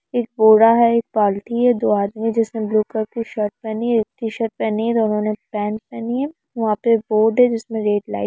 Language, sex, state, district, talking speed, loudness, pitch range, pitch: Hindi, female, Bihar, Araria, 240 wpm, -19 LUFS, 215-230 Hz, 225 Hz